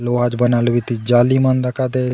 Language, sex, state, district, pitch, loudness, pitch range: Halbi, male, Chhattisgarh, Bastar, 120 Hz, -16 LUFS, 120-130 Hz